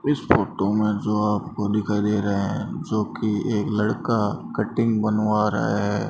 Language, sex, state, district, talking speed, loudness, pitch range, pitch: Hindi, male, Rajasthan, Bikaner, 165 wpm, -23 LUFS, 100-105 Hz, 105 Hz